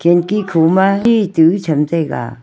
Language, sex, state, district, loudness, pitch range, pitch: Wancho, female, Arunachal Pradesh, Longding, -14 LUFS, 160-195 Hz, 170 Hz